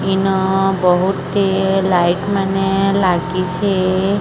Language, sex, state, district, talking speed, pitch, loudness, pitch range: Odia, female, Odisha, Sambalpur, 85 wpm, 190 Hz, -16 LUFS, 185-195 Hz